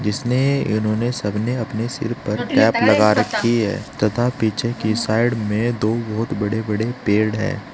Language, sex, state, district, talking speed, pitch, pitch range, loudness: Hindi, male, Uttar Pradesh, Saharanpur, 170 wpm, 110 Hz, 105-120 Hz, -19 LUFS